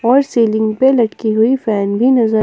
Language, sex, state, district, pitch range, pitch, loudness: Hindi, female, Jharkhand, Ranchi, 220-255 Hz, 230 Hz, -14 LUFS